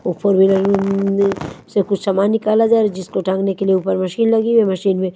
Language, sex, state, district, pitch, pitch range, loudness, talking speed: Hindi, female, Haryana, Charkhi Dadri, 195 Hz, 190-210 Hz, -16 LUFS, 245 wpm